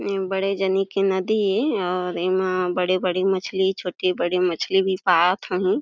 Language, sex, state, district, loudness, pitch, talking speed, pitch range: Chhattisgarhi, female, Chhattisgarh, Jashpur, -22 LUFS, 185 Hz, 165 wpm, 180-195 Hz